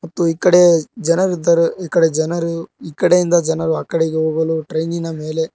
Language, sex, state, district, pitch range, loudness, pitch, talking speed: Kannada, male, Karnataka, Koppal, 160-170 Hz, -16 LUFS, 165 Hz, 150 wpm